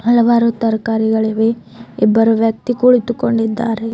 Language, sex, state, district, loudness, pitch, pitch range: Kannada, female, Karnataka, Bidar, -15 LUFS, 225 Hz, 220-235 Hz